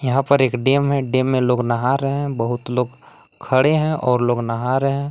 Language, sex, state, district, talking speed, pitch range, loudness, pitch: Hindi, male, Jharkhand, Palamu, 235 wpm, 125-140 Hz, -19 LUFS, 130 Hz